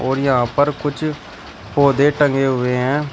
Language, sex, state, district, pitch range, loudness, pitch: Hindi, male, Uttar Pradesh, Shamli, 125-145 Hz, -17 LUFS, 135 Hz